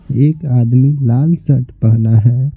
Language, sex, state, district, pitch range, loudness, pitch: Hindi, male, Bihar, Patna, 120-140 Hz, -12 LUFS, 130 Hz